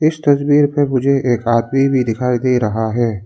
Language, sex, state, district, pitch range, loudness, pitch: Hindi, male, Arunachal Pradesh, Lower Dibang Valley, 120-140 Hz, -15 LUFS, 130 Hz